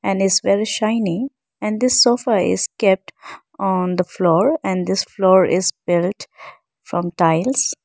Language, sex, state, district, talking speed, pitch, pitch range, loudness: English, female, Arunachal Pradesh, Lower Dibang Valley, 145 wpm, 195 Hz, 180-225 Hz, -18 LUFS